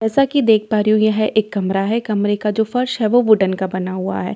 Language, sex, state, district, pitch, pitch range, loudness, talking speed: Hindi, female, Delhi, New Delhi, 215 Hz, 200-220 Hz, -17 LUFS, 305 wpm